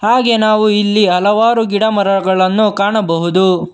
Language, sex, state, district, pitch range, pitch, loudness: Kannada, male, Karnataka, Bangalore, 190-215 Hz, 205 Hz, -12 LUFS